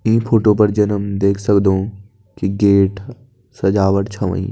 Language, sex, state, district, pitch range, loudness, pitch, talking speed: Kumaoni, male, Uttarakhand, Tehri Garhwal, 100-110 Hz, -16 LUFS, 100 Hz, 160 wpm